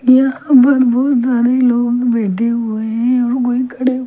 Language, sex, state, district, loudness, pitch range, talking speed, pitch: Hindi, female, Delhi, New Delhi, -14 LUFS, 240-255 Hz, 175 wpm, 250 Hz